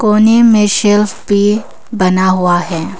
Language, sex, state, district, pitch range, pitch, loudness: Hindi, female, Arunachal Pradesh, Papum Pare, 185-215 Hz, 205 Hz, -11 LUFS